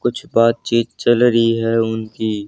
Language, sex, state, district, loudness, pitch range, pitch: Hindi, male, Haryana, Charkhi Dadri, -17 LUFS, 110-120 Hz, 115 Hz